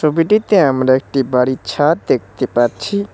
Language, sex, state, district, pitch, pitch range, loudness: Bengali, male, West Bengal, Cooch Behar, 130 Hz, 125-165 Hz, -15 LUFS